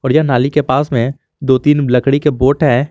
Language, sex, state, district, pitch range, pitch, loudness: Hindi, male, Jharkhand, Garhwa, 130-150 Hz, 135 Hz, -13 LUFS